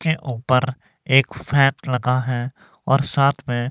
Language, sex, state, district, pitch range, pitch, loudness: Hindi, male, Himachal Pradesh, Shimla, 125-140 Hz, 130 Hz, -20 LUFS